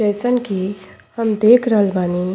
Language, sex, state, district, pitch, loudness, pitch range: Bhojpuri, female, Uttar Pradesh, Ghazipur, 210 Hz, -17 LUFS, 190-230 Hz